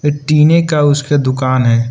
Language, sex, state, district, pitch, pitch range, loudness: Hindi, male, Arunachal Pradesh, Lower Dibang Valley, 145 Hz, 130-150 Hz, -12 LUFS